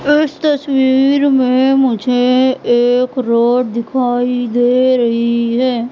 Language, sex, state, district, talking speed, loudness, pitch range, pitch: Hindi, female, Madhya Pradesh, Katni, 100 wpm, -13 LUFS, 240-265 Hz, 250 Hz